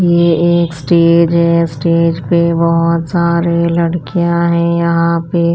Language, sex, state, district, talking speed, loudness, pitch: Hindi, female, Punjab, Pathankot, 140 wpm, -12 LUFS, 170 Hz